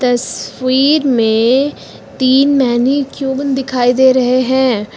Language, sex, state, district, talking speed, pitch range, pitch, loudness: Hindi, female, Uttar Pradesh, Lucknow, 95 wpm, 245-270 Hz, 260 Hz, -13 LUFS